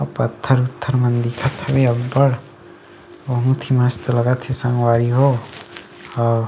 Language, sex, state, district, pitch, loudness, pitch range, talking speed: Chhattisgarhi, male, Chhattisgarh, Bastar, 125 Hz, -18 LUFS, 120-130 Hz, 150 wpm